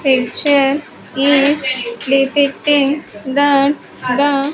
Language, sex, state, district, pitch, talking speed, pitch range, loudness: English, female, Andhra Pradesh, Sri Satya Sai, 275 Hz, 65 wpm, 265-285 Hz, -15 LUFS